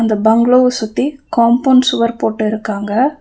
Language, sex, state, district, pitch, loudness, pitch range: Tamil, female, Tamil Nadu, Nilgiris, 235 Hz, -14 LUFS, 220-255 Hz